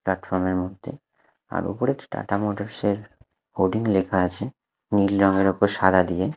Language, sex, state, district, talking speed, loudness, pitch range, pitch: Bengali, male, Odisha, Khordha, 140 wpm, -23 LUFS, 95-100 Hz, 95 Hz